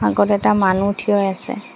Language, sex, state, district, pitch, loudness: Assamese, female, Assam, Hailakandi, 195 Hz, -17 LUFS